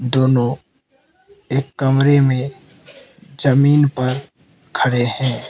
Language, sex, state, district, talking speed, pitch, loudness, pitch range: Hindi, male, Mizoram, Aizawl, 85 wpm, 135 Hz, -17 LUFS, 130-150 Hz